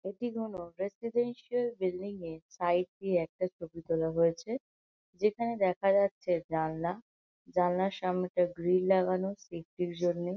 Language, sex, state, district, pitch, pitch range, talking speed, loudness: Bengali, female, West Bengal, North 24 Parganas, 185 Hz, 175-200 Hz, 125 wpm, -32 LUFS